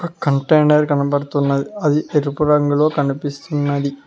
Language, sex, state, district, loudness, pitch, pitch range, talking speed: Telugu, male, Telangana, Mahabubabad, -17 LUFS, 145 Hz, 140-150 Hz, 90 wpm